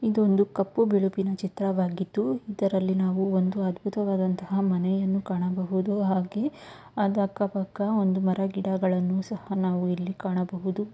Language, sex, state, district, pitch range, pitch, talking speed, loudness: Kannada, female, Karnataka, Mysore, 185-200 Hz, 195 Hz, 110 wpm, -27 LUFS